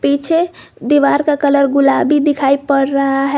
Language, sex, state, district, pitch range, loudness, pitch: Hindi, female, Jharkhand, Garhwa, 275-295 Hz, -13 LUFS, 280 Hz